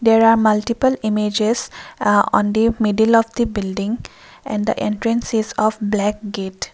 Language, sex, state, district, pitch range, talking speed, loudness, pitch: English, female, Assam, Kamrup Metropolitan, 210-230 Hz, 160 wpm, -18 LUFS, 220 Hz